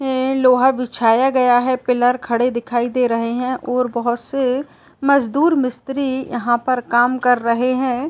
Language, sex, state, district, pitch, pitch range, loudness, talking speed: Hindi, female, Uttar Pradesh, Etah, 250 Hz, 240-260 Hz, -17 LUFS, 165 wpm